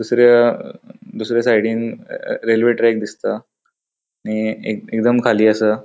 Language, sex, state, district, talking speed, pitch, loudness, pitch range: Konkani, male, Goa, North and South Goa, 115 wpm, 115 Hz, -17 LUFS, 110-120 Hz